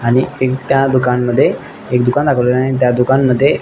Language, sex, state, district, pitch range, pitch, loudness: Marathi, male, Maharashtra, Nagpur, 125-135 Hz, 130 Hz, -14 LUFS